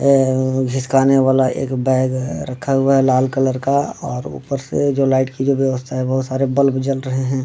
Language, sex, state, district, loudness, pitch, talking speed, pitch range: Hindi, male, Bihar, Darbhanga, -17 LUFS, 130 Hz, 215 wpm, 130-135 Hz